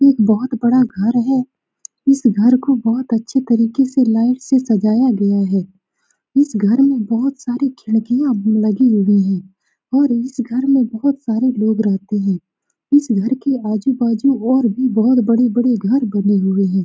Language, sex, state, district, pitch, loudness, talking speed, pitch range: Hindi, female, Bihar, Saran, 240 Hz, -16 LUFS, 165 wpm, 215-260 Hz